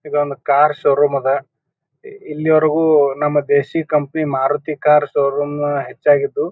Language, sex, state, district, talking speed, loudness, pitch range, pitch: Kannada, male, Karnataka, Bijapur, 120 wpm, -16 LUFS, 140-155 Hz, 150 Hz